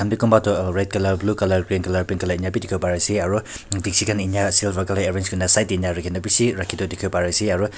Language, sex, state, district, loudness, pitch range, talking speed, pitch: Nagamese, male, Nagaland, Kohima, -20 LUFS, 90-105 Hz, 245 wpm, 95 Hz